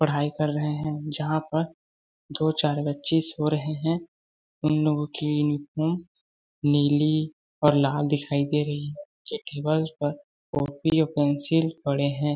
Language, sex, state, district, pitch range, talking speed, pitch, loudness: Hindi, male, Chhattisgarh, Balrampur, 145-155 Hz, 150 wpm, 150 Hz, -26 LUFS